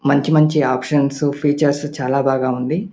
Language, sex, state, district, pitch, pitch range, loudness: Telugu, male, Andhra Pradesh, Anantapur, 145 Hz, 135-150 Hz, -17 LUFS